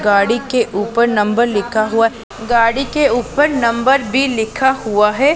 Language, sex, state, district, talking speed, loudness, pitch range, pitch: Hindi, female, Punjab, Pathankot, 155 wpm, -15 LUFS, 215-265 Hz, 235 Hz